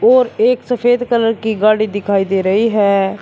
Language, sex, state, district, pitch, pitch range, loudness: Hindi, male, Uttar Pradesh, Shamli, 220 Hz, 205-245 Hz, -14 LUFS